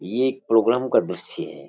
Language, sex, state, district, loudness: Rajasthani, male, Rajasthan, Churu, -22 LUFS